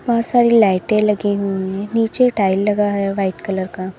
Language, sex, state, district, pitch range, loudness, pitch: Hindi, female, Uttar Pradesh, Lalitpur, 195-225 Hz, -17 LUFS, 205 Hz